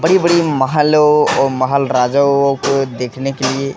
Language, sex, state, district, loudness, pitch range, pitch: Hindi, male, Bihar, Kishanganj, -14 LUFS, 135-150 Hz, 140 Hz